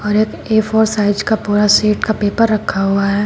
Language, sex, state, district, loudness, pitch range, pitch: Hindi, female, Uttar Pradesh, Shamli, -14 LUFS, 205-220 Hz, 210 Hz